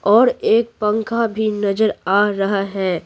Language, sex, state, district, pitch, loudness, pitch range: Hindi, female, Bihar, Patna, 210 Hz, -18 LUFS, 200-220 Hz